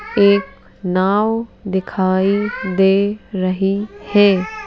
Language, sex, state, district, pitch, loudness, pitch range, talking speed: Hindi, female, Madhya Pradesh, Bhopal, 200 Hz, -17 LUFS, 190-205 Hz, 90 wpm